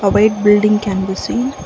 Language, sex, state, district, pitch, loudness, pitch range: English, female, Karnataka, Bangalore, 210 Hz, -14 LUFS, 200-210 Hz